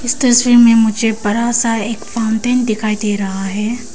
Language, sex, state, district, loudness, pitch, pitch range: Hindi, female, Arunachal Pradesh, Papum Pare, -14 LUFS, 225 Hz, 215-240 Hz